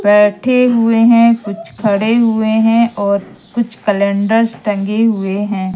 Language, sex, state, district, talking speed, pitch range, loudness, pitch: Hindi, female, Madhya Pradesh, Katni, 135 wpm, 205-230 Hz, -13 LUFS, 220 Hz